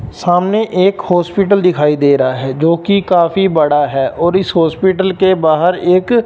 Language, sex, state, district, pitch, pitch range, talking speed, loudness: Hindi, male, Punjab, Fazilka, 175 Hz, 155-190 Hz, 175 wpm, -12 LUFS